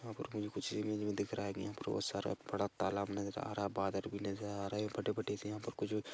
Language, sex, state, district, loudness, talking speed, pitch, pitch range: Hindi, male, Chhattisgarh, Kabirdham, -40 LUFS, 315 wpm, 100 Hz, 100-105 Hz